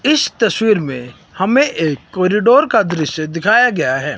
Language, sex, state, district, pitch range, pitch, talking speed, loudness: Hindi, male, Himachal Pradesh, Shimla, 155-235 Hz, 190 Hz, 160 wpm, -14 LUFS